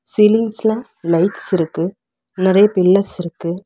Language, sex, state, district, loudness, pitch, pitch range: Tamil, female, Tamil Nadu, Chennai, -16 LUFS, 190 Hz, 175-210 Hz